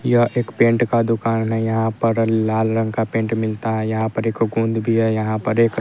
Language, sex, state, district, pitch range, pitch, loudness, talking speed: Hindi, male, Bihar, West Champaran, 110-115 Hz, 115 Hz, -19 LUFS, 245 wpm